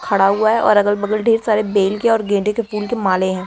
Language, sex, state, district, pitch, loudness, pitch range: Hindi, female, Bihar, Jamui, 210 Hz, -16 LUFS, 200-220 Hz